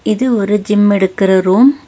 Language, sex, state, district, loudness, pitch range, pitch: Tamil, female, Tamil Nadu, Nilgiris, -12 LUFS, 195-230 Hz, 210 Hz